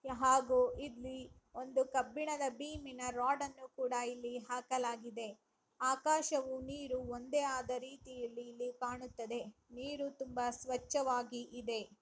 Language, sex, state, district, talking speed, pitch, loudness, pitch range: Kannada, female, Karnataka, Raichur, 100 wpm, 255 Hz, -39 LUFS, 245-265 Hz